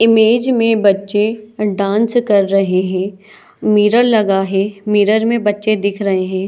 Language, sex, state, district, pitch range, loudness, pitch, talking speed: Hindi, female, Chhattisgarh, Bilaspur, 195-220 Hz, -14 LUFS, 210 Hz, 150 wpm